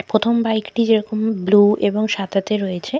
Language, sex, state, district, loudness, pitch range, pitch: Bengali, female, West Bengal, Malda, -18 LUFS, 205-220 Hz, 215 Hz